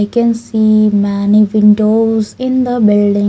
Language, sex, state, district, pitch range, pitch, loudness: English, female, Haryana, Jhajjar, 205-225 Hz, 215 Hz, -11 LUFS